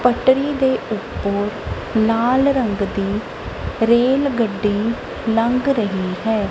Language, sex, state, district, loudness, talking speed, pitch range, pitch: Punjabi, female, Punjab, Kapurthala, -19 LUFS, 100 wpm, 205-255 Hz, 225 Hz